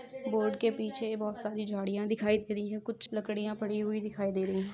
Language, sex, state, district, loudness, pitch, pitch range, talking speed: Hindi, female, Uttar Pradesh, Etah, -33 LUFS, 215 Hz, 210-220 Hz, 230 wpm